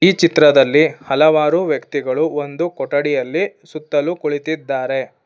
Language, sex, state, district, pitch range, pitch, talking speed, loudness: Kannada, female, Karnataka, Bangalore, 145-160 Hz, 150 Hz, 90 wpm, -16 LUFS